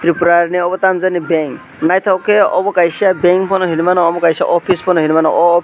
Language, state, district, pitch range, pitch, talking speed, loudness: Kokborok, Tripura, West Tripura, 170-185 Hz, 175 Hz, 235 wpm, -13 LUFS